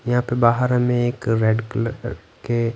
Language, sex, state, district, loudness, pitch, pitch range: Hindi, male, Bihar, Patna, -20 LUFS, 120 Hz, 115-120 Hz